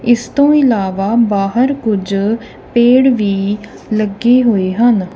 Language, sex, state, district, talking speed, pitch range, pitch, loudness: Punjabi, female, Punjab, Kapurthala, 115 wpm, 200-245 Hz, 225 Hz, -13 LUFS